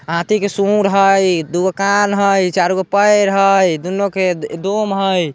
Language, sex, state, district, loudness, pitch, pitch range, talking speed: Bajjika, male, Bihar, Vaishali, -14 LUFS, 195 Hz, 180-200 Hz, 155 wpm